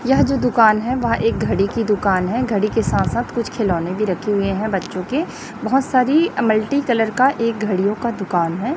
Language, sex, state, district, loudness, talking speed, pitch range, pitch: Hindi, female, Chhattisgarh, Raipur, -18 LUFS, 220 wpm, 200-250 Hz, 220 Hz